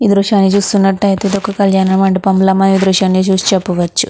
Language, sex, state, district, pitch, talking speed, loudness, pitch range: Telugu, female, Andhra Pradesh, Krishna, 195 Hz, 175 wpm, -12 LUFS, 190-200 Hz